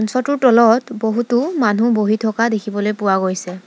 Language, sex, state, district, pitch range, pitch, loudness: Assamese, female, Assam, Sonitpur, 210-240 Hz, 220 Hz, -16 LUFS